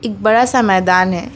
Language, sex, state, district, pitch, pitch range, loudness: Hindi, female, West Bengal, Alipurduar, 215 Hz, 185-240 Hz, -13 LUFS